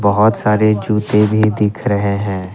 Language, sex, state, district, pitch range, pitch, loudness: Hindi, male, Assam, Kamrup Metropolitan, 100-105 Hz, 105 Hz, -15 LUFS